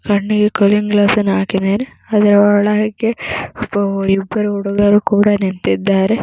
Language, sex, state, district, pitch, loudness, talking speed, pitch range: Kannada, female, Karnataka, Mysore, 205 Hz, -14 LUFS, 115 wpm, 200-210 Hz